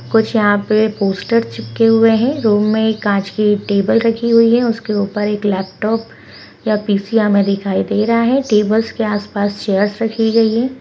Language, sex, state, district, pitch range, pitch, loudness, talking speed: Hindi, female, Uttarakhand, Uttarkashi, 205-225 Hz, 215 Hz, -15 LUFS, 190 wpm